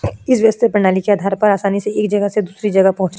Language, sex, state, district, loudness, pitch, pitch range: Hindi, female, Uttar Pradesh, Jyotiba Phule Nagar, -15 LUFS, 205 Hz, 195-210 Hz